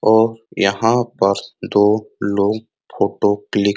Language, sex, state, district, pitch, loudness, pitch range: Hindi, male, Uttar Pradesh, Ghazipur, 105 Hz, -18 LUFS, 100-110 Hz